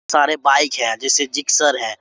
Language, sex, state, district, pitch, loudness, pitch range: Hindi, male, Jharkhand, Sahebganj, 140 Hz, -16 LUFS, 125-145 Hz